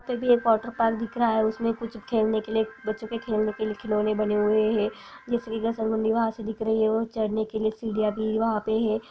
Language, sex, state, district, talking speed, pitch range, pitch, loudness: Hindi, female, Chhattisgarh, Bilaspur, 215 wpm, 215-225 Hz, 220 Hz, -26 LUFS